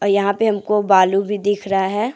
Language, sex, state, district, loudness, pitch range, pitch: Hindi, female, Jharkhand, Deoghar, -17 LUFS, 195-210 Hz, 200 Hz